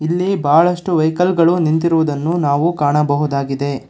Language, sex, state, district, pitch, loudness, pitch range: Kannada, male, Karnataka, Bangalore, 160 Hz, -15 LUFS, 145-175 Hz